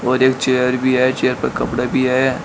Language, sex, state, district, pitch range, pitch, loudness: Hindi, male, Uttar Pradesh, Shamli, 125-130 Hz, 130 Hz, -17 LUFS